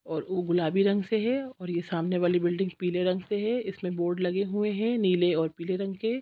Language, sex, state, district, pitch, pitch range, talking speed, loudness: Hindi, female, Chhattisgarh, Sukma, 185 Hz, 175-205 Hz, 230 wpm, -28 LUFS